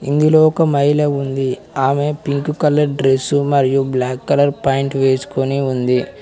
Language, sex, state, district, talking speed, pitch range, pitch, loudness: Telugu, male, Telangana, Mahabubabad, 135 wpm, 135-145 Hz, 140 Hz, -16 LUFS